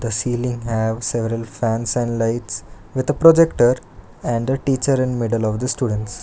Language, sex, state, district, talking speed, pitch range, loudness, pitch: English, male, Karnataka, Bangalore, 175 wpm, 115-130 Hz, -19 LUFS, 120 Hz